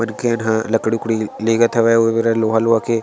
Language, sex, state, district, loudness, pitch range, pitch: Chhattisgarhi, male, Chhattisgarh, Sarguja, -17 LUFS, 110-115 Hz, 115 Hz